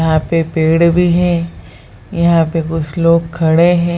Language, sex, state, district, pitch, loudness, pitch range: Hindi, female, Bihar, Jahanabad, 165 Hz, -13 LUFS, 160-170 Hz